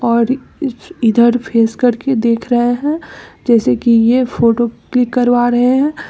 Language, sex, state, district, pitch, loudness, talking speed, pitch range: Hindi, female, Bihar, East Champaran, 240 Hz, -14 LUFS, 160 wpm, 235-255 Hz